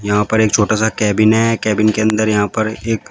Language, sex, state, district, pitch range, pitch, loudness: Hindi, male, Uttar Pradesh, Shamli, 105-110 Hz, 110 Hz, -15 LUFS